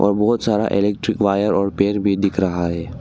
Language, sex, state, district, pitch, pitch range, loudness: Hindi, male, Arunachal Pradesh, Longding, 100 Hz, 100-105 Hz, -19 LUFS